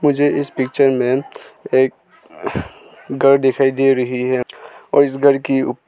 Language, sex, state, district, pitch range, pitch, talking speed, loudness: Hindi, male, Arunachal Pradesh, Lower Dibang Valley, 130-140 Hz, 135 Hz, 155 wpm, -16 LUFS